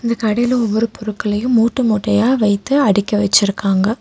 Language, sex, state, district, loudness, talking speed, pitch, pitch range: Tamil, female, Tamil Nadu, Nilgiris, -16 LUFS, 120 wpm, 220 Hz, 205-235 Hz